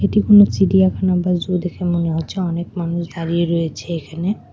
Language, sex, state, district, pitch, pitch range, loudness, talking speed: Bengali, female, West Bengal, Cooch Behar, 175 Hz, 170-190 Hz, -18 LUFS, 170 wpm